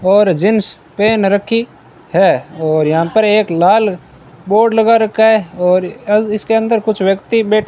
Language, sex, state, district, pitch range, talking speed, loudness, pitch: Hindi, male, Rajasthan, Bikaner, 180-220 Hz, 170 wpm, -13 LUFS, 205 Hz